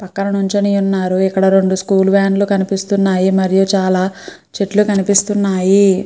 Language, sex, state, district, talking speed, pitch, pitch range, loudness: Telugu, female, Andhra Pradesh, Srikakulam, 120 wpm, 195 Hz, 190-200 Hz, -14 LUFS